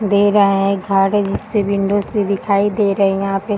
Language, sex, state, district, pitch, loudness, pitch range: Hindi, female, Bihar, Sitamarhi, 200 Hz, -16 LUFS, 195-205 Hz